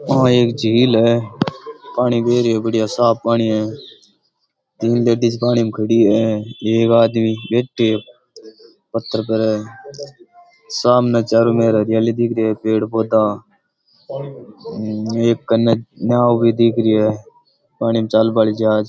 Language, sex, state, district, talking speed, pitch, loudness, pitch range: Rajasthani, male, Rajasthan, Churu, 145 wpm, 115 Hz, -16 LUFS, 110-120 Hz